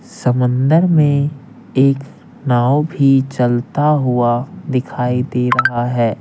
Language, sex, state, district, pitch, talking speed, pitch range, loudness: Hindi, male, Bihar, Patna, 130 Hz, 105 wpm, 125-145 Hz, -15 LUFS